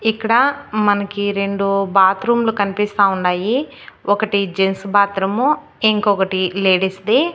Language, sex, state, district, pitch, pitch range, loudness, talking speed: Telugu, female, Andhra Pradesh, Annamaya, 200 Hz, 195-220 Hz, -17 LUFS, 100 wpm